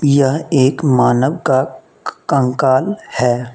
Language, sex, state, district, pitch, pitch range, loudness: Hindi, male, Mizoram, Aizawl, 130 Hz, 130-140 Hz, -15 LUFS